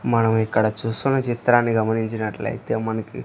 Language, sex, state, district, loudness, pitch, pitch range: Telugu, male, Andhra Pradesh, Sri Satya Sai, -22 LUFS, 110 Hz, 110-120 Hz